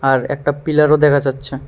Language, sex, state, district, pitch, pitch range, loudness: Bengali, male, Tripura, West Tripura, 140 Hz, 135-150 Hz, -15 LUFS